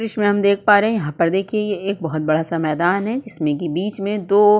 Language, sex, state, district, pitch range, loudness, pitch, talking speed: Hindi, female, Uttar Pradesh, Budaun, 170-210 Hz, -19 LUFS, 200 Hz, 300 wpm